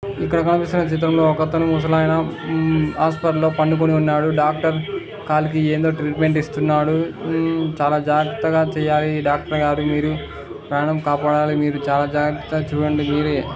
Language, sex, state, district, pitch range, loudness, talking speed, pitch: Telugu, male, Karnataka, Dharwad, 150-160 Hz, -19 LUFS, 135 wpm, 155 Hz